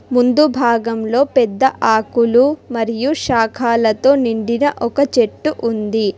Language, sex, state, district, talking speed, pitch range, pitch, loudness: Telugu, female, Telangana, Hyderabad, 95 wpm, 225-270 Hz, 235 Hz, -15 LUFS